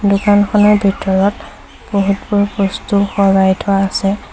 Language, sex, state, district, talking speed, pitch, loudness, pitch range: Assamese, female, Assam, Sonitpur, 95 wpm, 200 Hz, -14 LUFS, 195-205 Hz